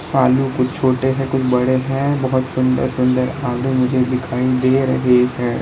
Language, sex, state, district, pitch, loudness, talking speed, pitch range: Hindi, male, Uttar Pradesh, Lalitpur, 130 Hz, -17 LUFS, 170 wpm, 125-130 Hz